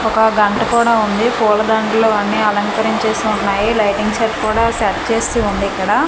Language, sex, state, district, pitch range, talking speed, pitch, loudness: Telugu, female, Andhra Pradesh, Manyam, 210-225 Hz, 140 wpm, 220 Hz, -15 LUFS